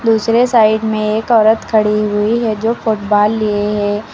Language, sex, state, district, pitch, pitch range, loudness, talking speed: Hindi, female, Uttar Pradesh, Lucknow, 220 Hz, 210-225 Hz, -14 LUFS, 175 wpm